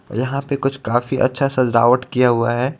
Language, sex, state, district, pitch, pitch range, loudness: Hindi, male, Jharkhand, Ranchi, 125 Hz, 120-135 Hz, -18 LUFS